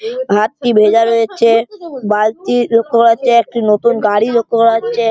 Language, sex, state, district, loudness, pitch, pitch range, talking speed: Bengali, male, West Bengal, Malda, -12 LUFS, 230 Hz, 225-235 Hz, 150 wpm